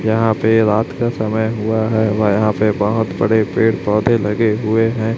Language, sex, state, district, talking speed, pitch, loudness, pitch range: Hindi, male, Chhattisgarh, Raipur, 195 wpm, 110 Hz, -16 LUFS, 105-110 Hz